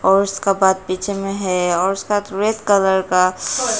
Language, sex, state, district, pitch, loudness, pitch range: Hindi, female, Arunachal Pradesh, Papum Pare, 195 Hz, -18 LUFS, 185-200 Hz